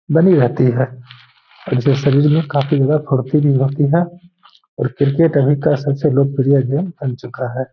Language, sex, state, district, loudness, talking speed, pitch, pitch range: Hindi, male, Bihar, Gaya, -16 LUFS, 185 wpm, 140 Hz, 130-150 Hz